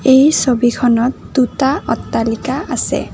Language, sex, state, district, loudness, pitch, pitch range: Assamese, female, Assam, Kamrup Metropolitan, -15 LUFS, 255 Hz, 240-270 Hz